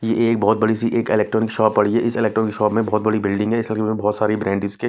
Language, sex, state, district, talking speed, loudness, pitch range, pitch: Hindi, male, Punjab, Kapurthala, 280 wpm, -19 LUFS, 105-115 Hz, 110 Hz